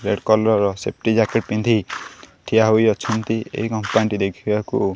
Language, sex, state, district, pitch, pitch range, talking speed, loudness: Odia, male, Odisha, Khordha, 110 Hz, 105-110 Hz, 145 wpm, -19 LUFS